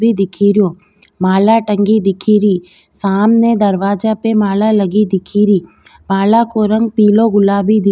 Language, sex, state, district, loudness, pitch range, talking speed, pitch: Rajasthani, female, Rajasthan, Nagaur, -12 LUFS, 195-220 Hz, 150 wpm, 205 Hz